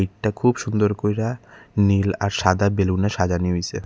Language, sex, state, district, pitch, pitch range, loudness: Bengali, male, Tripura, Unakoti, 100 Hz, 95-105 Hz, -21 LUFS